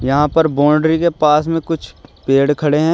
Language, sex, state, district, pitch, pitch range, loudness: Hindi, male, Uttar Pradesh, Shamli, 150 Hz, 145-160 Hz, -15 LUFS